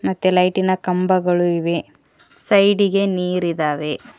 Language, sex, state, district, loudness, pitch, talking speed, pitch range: Kannada, female, Karnataka, Koppal, -18 LUFS, 180 Hz, 85 wpm, 170-185 Hz